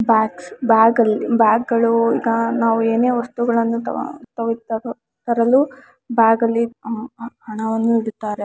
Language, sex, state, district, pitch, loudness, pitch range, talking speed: Kannada, female, Karnataka, Mysore, 230 Hz, -18 LUFS, 225-235 Hz, 85 wpm